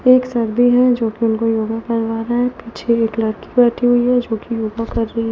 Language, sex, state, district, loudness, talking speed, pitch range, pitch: Hindi, female, Delhi, New Delhi, -17 LUFS, 235 wpm, 225-245 Hz, 230 Hz